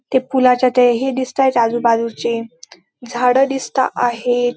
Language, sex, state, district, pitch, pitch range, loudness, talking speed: Marathi, female, Maharashtra, Dhule, 245 Hz, 235-260 Hz, -16 LUFS, 120 wpm